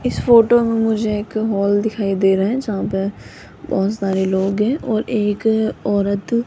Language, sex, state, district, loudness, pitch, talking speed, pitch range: Hindi, female, Rajasthan, Jaipur, -18 LUFS, 210 Hz, 185 wpm, 200-225 Hz